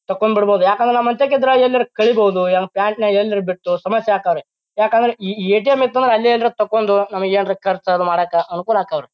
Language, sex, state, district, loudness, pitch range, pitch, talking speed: Kannada, male, Karnataka, Bijapur, -16 LUFS, 190-235 Hz, 205 Hz, 195 wpm